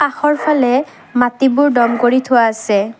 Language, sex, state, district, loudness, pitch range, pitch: Assamese, female, Assam, Kamrup Metropolitan, -14 LUFS, 235-285 Hz, 245 Hz